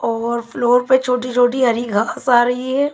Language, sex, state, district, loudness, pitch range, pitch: Hindi, female, Punjab, Kapurthala, -17 LUFS, 235-255 Hz, 245 Hz